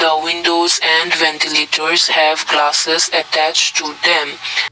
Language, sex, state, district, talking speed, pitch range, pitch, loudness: English, male, Assam, Kamrup Metropolitan, 115 wpm, 155-165 Hz, 160 Hz, -13 LUFS